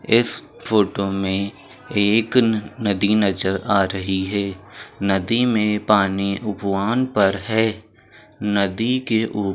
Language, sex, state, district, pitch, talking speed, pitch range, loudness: Hindi, male, Uttar Pradesh, Jalaun, 105 Hz, 120 wpm, 100-110 Hz, -20 LUFS